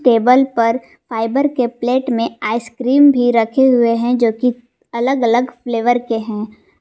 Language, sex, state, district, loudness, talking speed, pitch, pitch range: Hindi, female, Jharkhand, Palamu, -15 LUFS, 165 wpm, 240 Hz, 230-255 Hz